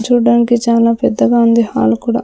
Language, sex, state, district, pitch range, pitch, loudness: Telugu, female, Andhra Pradesh, Sri Satya Sai, 230-240 Hz, 235 Hz, -12 LUFS